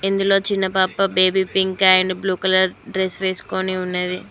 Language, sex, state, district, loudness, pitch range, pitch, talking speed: Telugu, female, Telangana, Mahabubabad, -18 LUFS, 185-195 Hz, 190 Hz, 155 wpm